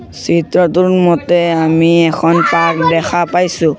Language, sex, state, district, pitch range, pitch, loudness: Assamese, male, Assam, Sonitpur, 165-175 Hz, 170 Hz, -12 LUFS